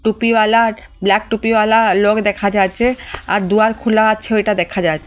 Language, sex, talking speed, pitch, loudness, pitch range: Bengali, female, 165 wpm, 215 Hz, -15 LUFS, 200-225 Hz